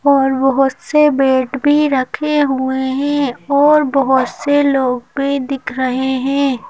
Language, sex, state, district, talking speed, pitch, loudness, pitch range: Hindi, female, Madhya Pradesh, Bhopal, 145 wpm, 270 Hz, -15 LUFS, 260-285 Hz